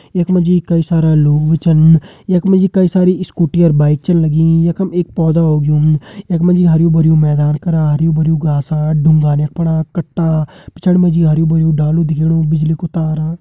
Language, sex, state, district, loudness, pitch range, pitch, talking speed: Hindi, male, Uttarakhand, Uttarkashi, -13 LUFS, 155-170 Hz, 160 Hz, 200 wpm